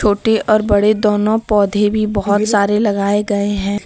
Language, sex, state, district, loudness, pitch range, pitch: Hindi, female, Jharkhand, Deoghar, -15 LUFS, 205-215 Hz, 205 Hz